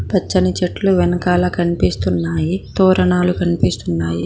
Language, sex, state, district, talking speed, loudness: Telugu, female, Telangana, Mahabubabad, 85 wpm, -16 LUFS